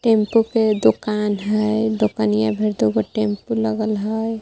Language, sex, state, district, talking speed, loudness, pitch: Magahi, female, Jharkhand, Palamu, 135 wpm, -19 LUFS, 210 Hz